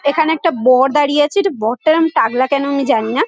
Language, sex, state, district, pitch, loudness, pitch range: Bengali, female, West Bengal, Kolkata, 285 Hz, -14 LUFS, 255-315 Hz